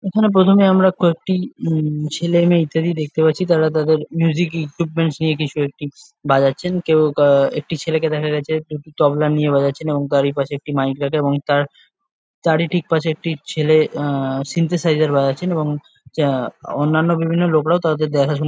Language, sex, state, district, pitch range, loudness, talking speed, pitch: Bengali, male, West Bengal, Jalpaiguri, 145-165 Hz, -18 LUFS, 170 wpm, 155 Hz